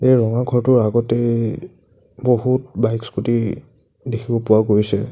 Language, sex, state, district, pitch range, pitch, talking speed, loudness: Assamese, male, Assam, Sonitpur, 110-125 Hz, 115 Hz, 115 wpm, -18 LUFS